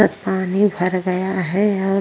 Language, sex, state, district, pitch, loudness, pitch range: Hindi, female, Uttar Pradesh, Jyotiba Phule Nagar, 190 Hz, -19 LUFS, 185-195 Hz